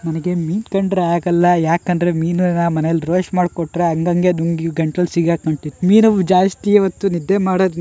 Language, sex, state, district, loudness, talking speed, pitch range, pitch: Kannada, male, Karnataka, Gulbarga, -16 LUFS, 155 wpm, 170-185 Hz, 175 Hz